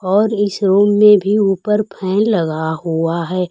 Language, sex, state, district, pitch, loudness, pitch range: Hindi, female, Bihar, Kaimur, 195 Hz, -15 LUFS, 175-210 Hz